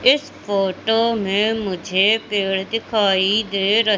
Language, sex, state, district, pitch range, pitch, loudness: Hindi, female, Madhya Pradesh, Katni, 195-225 Hz, 210 Hz, -19 LUFS